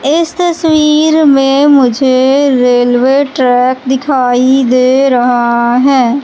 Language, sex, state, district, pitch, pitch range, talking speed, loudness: Hindi, female, Madhya Pradesh, Katni, 265 Hz, 250-285 Hz, 95 wpm, -9 LUFS